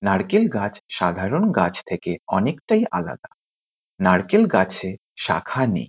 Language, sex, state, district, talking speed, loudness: Bengali, male, West Bengal, Kolkata, 110 wpm, -21 LUFS